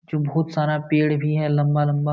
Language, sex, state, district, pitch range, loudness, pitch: Hindi, male, Uttar Pradesh, Jalaun, 150-155 Hz, -21 LUFS, 150 Hz